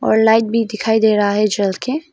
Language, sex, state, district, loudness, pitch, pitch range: Hindi, female, Arunachal Pradesh, Papum Pare, -15 LUFS, 220 Hz, 210-225 Hz